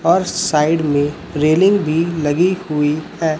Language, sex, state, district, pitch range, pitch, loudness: Hindi, male, Chhattisgarh, Raipur, 150-175 Hz, 160 Hz, -16 LUFS